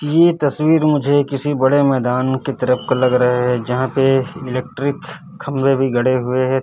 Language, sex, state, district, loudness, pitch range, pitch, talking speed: Hindi, male, Chhattisgarh, Raipur, -17 LUFS, 130-145 Hz, 135 Hz, 180 wpm